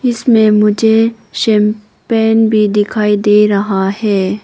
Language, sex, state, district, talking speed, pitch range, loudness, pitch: Hindi, female, Arunachal Pradesh, Papum Pare, 110 wpm, 210-220 Hz, -12 LUFS, 210 Hz